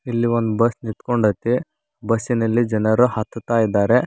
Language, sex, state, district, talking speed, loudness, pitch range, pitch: Kannada, male, Karnataka, Koppal, 120 wpm, -20 LUFS, 110-120 Hz, 115 Hz